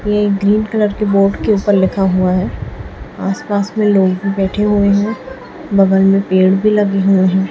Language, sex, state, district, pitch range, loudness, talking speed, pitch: Hindi, female, Chhattisgarh, Raipur, 195-210 Hz, -14 LUFS, 190 wpm, 200 Hz